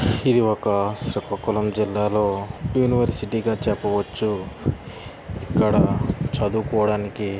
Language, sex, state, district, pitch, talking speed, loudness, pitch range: Telugu, male, Andhra Pradesh, Srikakulam, 105 Hz, 80 wpm, -22 LUFS, 100-115 Hz